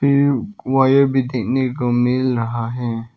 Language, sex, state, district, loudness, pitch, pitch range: Hindi, male, Arunachal Pradesh, Papum Pare, -18 LUFS, 125 Hz, 120-135 Hz